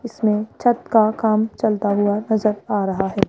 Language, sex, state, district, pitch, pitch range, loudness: Hindi, female, Rajasthan, Jaipur, 215 Hz, 205-220 Hz, -19 LUFS